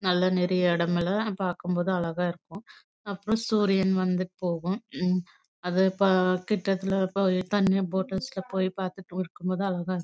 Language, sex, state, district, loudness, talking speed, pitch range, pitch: Tamil, female, Karnataka, Chamarajanagar, -27 LUFS, 65 wpm, 180-195 Hz, 185 Hz